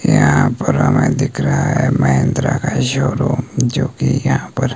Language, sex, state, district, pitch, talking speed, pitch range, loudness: Hindi, male, Himachal Pradesh, Shimla, 130 Hz, 165 wpm, 120-135 Hz, -15 LUFS